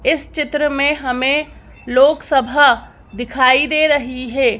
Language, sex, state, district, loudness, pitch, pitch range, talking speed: Hindi, female, Madhya Pradesh, Bhopal, -15 LUFS, 280 Hz, 255-295 Hz, 115 wpm